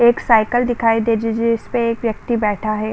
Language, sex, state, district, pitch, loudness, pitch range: Hindi, female, Maharashtra, Chandrapur, 230 Hz, -17 LUFS, 220-235 Hz